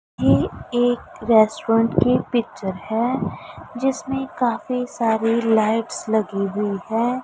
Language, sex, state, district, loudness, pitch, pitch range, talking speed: Hindi, female, Punjab, Pathankot, -21 LUFS, 230 Hz, 220-245 Hz, 110 wpm